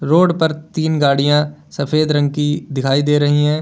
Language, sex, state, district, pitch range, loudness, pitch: Hindi, male, Uttar Pradesh, Lalitpur, 145-155 Hz, -16 LUFS, 150 Hz